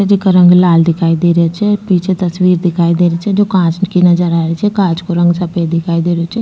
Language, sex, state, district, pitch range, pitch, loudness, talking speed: Rajasthani, female, Rajasthan, Nagaur, 170-190 Hz, 175 Hz, -12 LUFS, 260 wpm